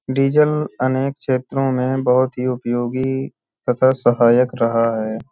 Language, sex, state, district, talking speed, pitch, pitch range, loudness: Hindi, male, Uttar Pradesh, Hamirpur, 135 wpm, 130 Hz, 120-135 Hz, -18 LUFS